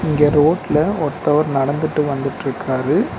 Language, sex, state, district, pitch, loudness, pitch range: Tamil, male, Tamil Nadu, Nilgiris, 150 Hz, -18 LUFS, 145-155 Hz